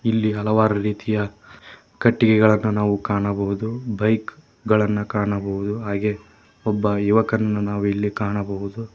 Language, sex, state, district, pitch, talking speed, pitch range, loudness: Kannada, male, Karnataka, Koppal, 105 Hz, 95 wpm, 100-110 Hz, -21 LUFS